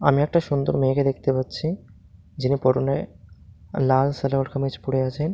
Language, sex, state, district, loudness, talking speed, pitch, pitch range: Bengali, male, West Bengal, Malda, -23 LUFS, 125 wpm, 135 Hz, 130-140 Hz